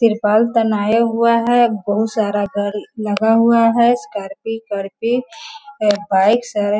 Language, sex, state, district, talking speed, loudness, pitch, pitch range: Hindi, female, Bihar, Sitamarhi, 130 wpm, -16 LUFS, 220 Hz, 205-235 Hz